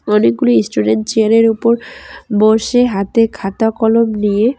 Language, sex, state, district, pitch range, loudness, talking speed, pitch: Bengali, female, West Bengal, Cooch Behar, 200-230 Hz, -13 LUFS, 130 wpm, 220 Hz